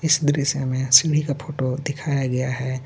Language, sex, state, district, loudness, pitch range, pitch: Hindi, male, Jharkhand, Garhwa, -21 LUFS, 130-150 Hz, 140 Hz